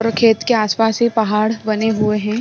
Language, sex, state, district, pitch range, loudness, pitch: Hindi, female, Bihar, Sitamarhi, 215-225 Hz, -16 LUFS, 220 Hz